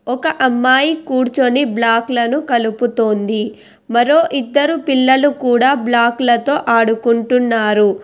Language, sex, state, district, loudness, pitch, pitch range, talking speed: Telugu, female, Telangana, Hyderabad, -14 LUFS, 245 Hz, 230-270 Hz, 95 wpm